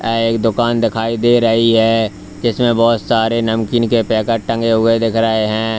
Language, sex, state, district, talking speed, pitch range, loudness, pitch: Hindi, male, Uttar Pradesh, Lalitpur, 175 wpm, 110-115 Hz, -15 LUFS, 115 Hz